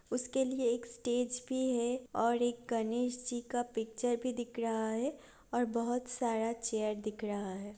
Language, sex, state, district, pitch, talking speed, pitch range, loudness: Hindi, female, Chhattisgarh, Raigarh, 240 Hz, 180 wpm, 225-245 Hz, -35 LUFS